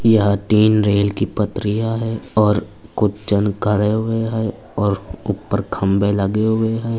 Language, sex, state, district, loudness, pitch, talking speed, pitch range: Hindi, male, Uttar Pradesh, Etah, -18 LUFS, 105 Hz, 155 wpm, 100-110 Hz